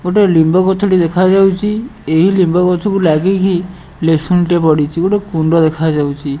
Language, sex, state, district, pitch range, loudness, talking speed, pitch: Odia, male, Odisha, Nuapada, 160-190 Hz, -13 LUFS, 130 wpm, 180 Hz